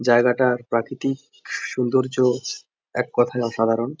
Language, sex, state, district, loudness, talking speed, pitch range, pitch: Bengali, male, West Bengal, Jhargram, -22 LUFS, 90 wpm, 120-130 Hz, 125 Hz